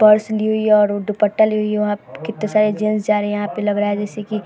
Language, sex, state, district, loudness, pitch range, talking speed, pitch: Hindi, female, Bihar, Vaishali, -18 LUFS, 210-215 Hz, 350 wpm, 210 Hz